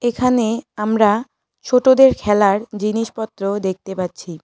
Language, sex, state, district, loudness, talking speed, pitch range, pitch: Bengali, female, West Bengal, Cooch Behar, -17 LUFS, 95 wpm, 200-240 Hz, 215 Hz